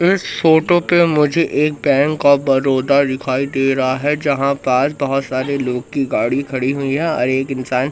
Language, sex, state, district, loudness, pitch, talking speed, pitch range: Hindi, male, Madhya Pradesh, Katni, -16 LUFS, 140 Hz, 190 wpm, 130-150 Hz